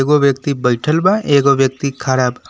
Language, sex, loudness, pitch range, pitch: Bhojpuri, male, -15 LUFS, 130-145 Hz, 140 Hz